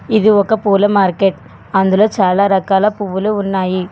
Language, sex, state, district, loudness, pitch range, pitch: Telugu, female, Telangana, Hyderabad, -14 LUFS, 190-205 Hz, 195 Hz